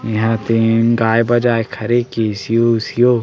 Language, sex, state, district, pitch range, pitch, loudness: Chhattisgarhi, male, Chhattisgarh, Sarguja, 115-120 Hz, 115 Hz, -15 LUFS